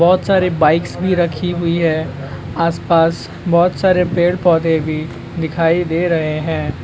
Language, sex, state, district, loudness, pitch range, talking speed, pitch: Hindi, male, Uttar Pradesh, Gorakhpur, -16 LUFS, 160-175 Hz, 150 wpm, 165 Hz